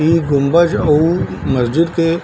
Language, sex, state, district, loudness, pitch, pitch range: Hindi, male, Bihar, Darbhanga, -14 LUFS, 165 Hz, 150-165 Hz